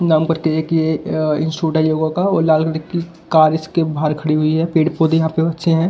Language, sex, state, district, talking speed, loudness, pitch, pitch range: Hindi, male, Delhi, New Delhi, 225 wpm, -17 LUFS, 160 Hz, 155-165 Hz